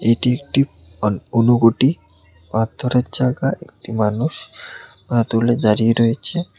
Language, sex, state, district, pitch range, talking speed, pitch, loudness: Bengali, male, Tripura, West Tripura, 110-135 Hz, 110 wpm, 120 Hz, -18 LUFS